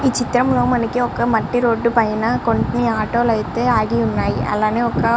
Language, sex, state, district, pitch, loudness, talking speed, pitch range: Telugu, male, Andhra Pradesh, Srikakulam, 235 Hz, -18 LUFS, 175 wpm, 220-245 Hz